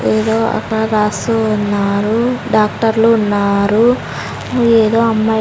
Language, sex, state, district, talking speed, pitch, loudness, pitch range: Telugu, female, Andhra Pradesh, Sri Satya Sai, 90 wpm, 220 Hz, -14 LUFS, 210-225 Hz